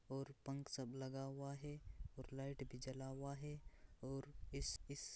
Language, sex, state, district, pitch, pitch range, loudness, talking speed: Hindi, male, Bihar, Purnia, 135 Hz, 135-140 Hz, -51 LUFS, 175 wpm